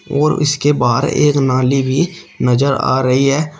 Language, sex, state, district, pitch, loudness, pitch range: Hindi, male, Uttar Pradesh, Shamli, 140 Hz, -14 LUFS, 130-150 Hz